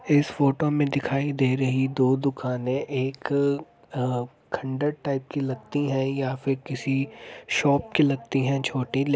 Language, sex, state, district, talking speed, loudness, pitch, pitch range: Hindi, male, Uttar Pradesh, Jyotiba Phule Nagar, 165 wpm, -25 LUFS, 135 Hz, 130-140 Hz